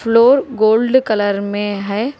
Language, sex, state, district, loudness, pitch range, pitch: Hindi, female, Telangana, Hyderabad, -15 LUFS, 205-250 Hz, 220 Hz